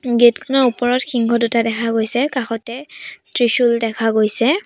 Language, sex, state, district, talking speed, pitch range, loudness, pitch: Assamese, female, Assam, Sonitpur, 140 wpm, 230-255 Hz, -17 LUFS, 240 Hz